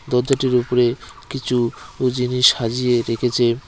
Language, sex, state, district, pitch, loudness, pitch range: Bengali, male, West Bengal, Cooch Behar, 125 Hz, -19 LUFS, 120-125 Hz